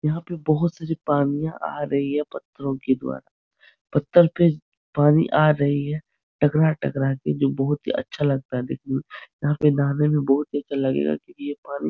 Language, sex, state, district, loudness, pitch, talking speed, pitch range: Hindi, male, Uttar Pradesh, Etah, -23 LUFS, 145 Hz, 195 wpm, 135-155 Hz